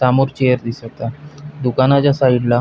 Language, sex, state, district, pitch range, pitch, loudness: Marathi, male, Maharashtra, Pune, 120-140 Hz, 130 Hz, -16 LUFS